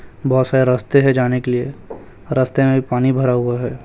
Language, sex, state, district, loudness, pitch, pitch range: Hindi, male, Chhattisgarh, Raipur, -17 LUFS, 130 Hz, 125-130 Hz